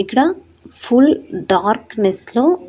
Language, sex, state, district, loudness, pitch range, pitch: Telugu, female, Andhra Pradesh, Annamaya, -15 LUFS, 205-315 Hz, 245 Hz